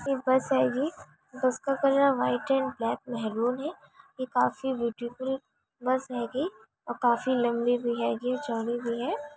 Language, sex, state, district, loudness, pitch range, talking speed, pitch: Hindi, female, Bihar, Purnia, -28 LUFS, 235-270 Hz, 160 wpm, 255 Hz